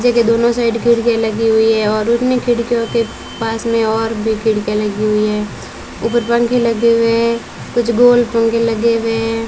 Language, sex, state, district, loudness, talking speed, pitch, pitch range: Hindi, female, Rajasthan, Bikaner, -15 LUFS, 195 wpm, 230 Hz, 225-235 Hz